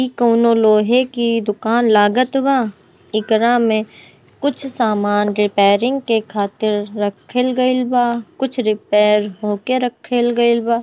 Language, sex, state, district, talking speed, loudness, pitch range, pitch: Bhojpuri, female, Bihar, Gopalganj, 120 wpm, -16 LUFS, 210-250 Hz, 230 Hz